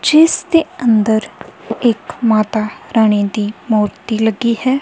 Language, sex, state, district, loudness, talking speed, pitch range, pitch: Punjabi, female, Punjab, Kapurthala, -15 LUFS, 125 wpm, 215-260 Hz, 225 Hz